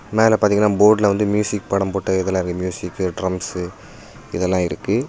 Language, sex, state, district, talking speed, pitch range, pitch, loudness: Tamil, male, Tamil Nadu, Kanyakumari, 140 wpm, 90-105 Hz, 95 Hz, -19 LUFS